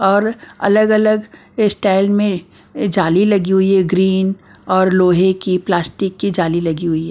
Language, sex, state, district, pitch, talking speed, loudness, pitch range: Hindi, female, Bihar, Patna, 190 Hz, 150 wpm, -15 LUFS, 185-205 Hz